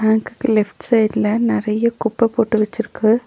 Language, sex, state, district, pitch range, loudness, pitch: Tamil, female, Tamil Nadu, Nilgiris, 215-230 Hz, -18 LUFS, 225 Hz